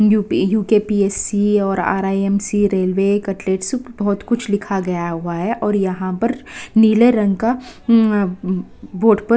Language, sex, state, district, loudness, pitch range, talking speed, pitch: Hindi, female, Uttarakhand, Tehri Garhwal, -17 LUFS, 195-220 Hz, 145 wpm, 205 Hz